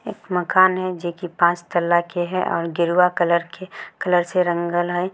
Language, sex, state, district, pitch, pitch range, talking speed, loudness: Maithili, female, Bihar, Samastipur, 175 Hz, 175-185 Hz, 175 wpm, -20 LUFS